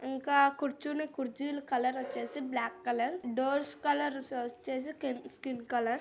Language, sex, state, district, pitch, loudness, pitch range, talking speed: Telugu, female, Andhra Pradesh, Anantapur, 265 Hz, -34 LUFS, 255-285 Hz, 90 wpm